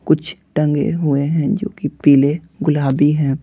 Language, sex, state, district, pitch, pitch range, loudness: Hindi, male, Bihar, Patna, 150 Hz, 145-165 Hz, -17 LUFS